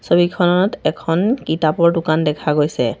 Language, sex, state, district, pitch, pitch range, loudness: Assamese, female, Assam, Sonitpur, 170 Hz, 155-175 Hz, -17 LUFS